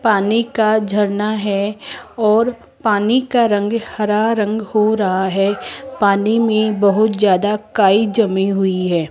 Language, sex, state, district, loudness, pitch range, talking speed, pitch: Hindi, female, Rajasthan, Jaipur, -16 LUFS, 200-220 Hz, 140 wpm, 210 Hz